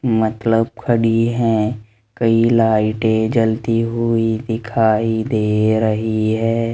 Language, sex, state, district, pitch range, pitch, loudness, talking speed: Hindi, male, Rajasthan, Jaipur, 110-115 Hz, 115 Hz, -17 LUFS, 100 wpm